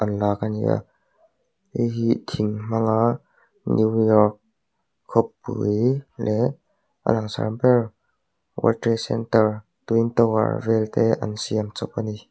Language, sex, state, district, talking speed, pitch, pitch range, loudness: Mizo, male, Mizoram, Aizawl, 110 wpm, 110 Hz, 110-115 Hz, -22 LUFS